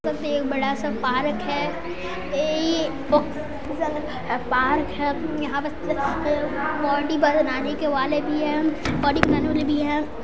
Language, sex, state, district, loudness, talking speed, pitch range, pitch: Hindi, male, Chhattisgarh, Sarguja, -23 LUFS, 140 wpm, 285-300 Hz, 295 Hz